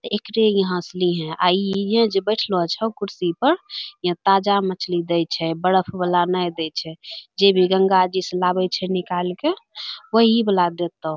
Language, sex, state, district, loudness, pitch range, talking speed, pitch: Angika, female, Bihar, Bhagalpur, -20 LUFS, 175-205 Hz, 185 wpm, 185 Hz